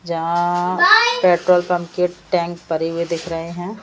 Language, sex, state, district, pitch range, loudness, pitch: Hindi, female, Madhya Pradesh, Bhopal, 170-180 Hz, -18 LUFS, 175 Hz